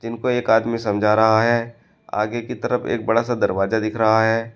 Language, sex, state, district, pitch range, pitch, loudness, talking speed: Hindi, male, Uttar Pradesh, Shamli, 110-115 Hz, 115 Hz, -19 LUFS, 210 wpm